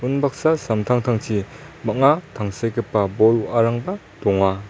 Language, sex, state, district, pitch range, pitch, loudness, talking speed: Garo, male, Meghalaya, West Garo Hills, 105-135 Hz, 115 Hz, -20 LUFS, 90 wpm